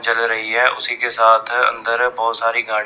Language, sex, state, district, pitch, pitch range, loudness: Hindi, male, Chandigarh, Chandigarh, 115 Hz, 115-120 Hz, -16 LUFS